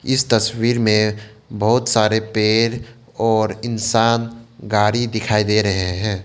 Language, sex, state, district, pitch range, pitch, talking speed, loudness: Hindi, male, Arunachal Pradesh, Lower Dibang Valley, 105-115 Hz, 110 Hz, 125 wpm, -18 LUFS